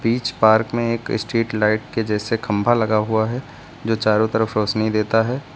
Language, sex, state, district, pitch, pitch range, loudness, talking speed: Hindi, male, Uttar Pradesh, Lucknow, 110 Hz, 110-115 Hz, -20 LUFS, 195 wpm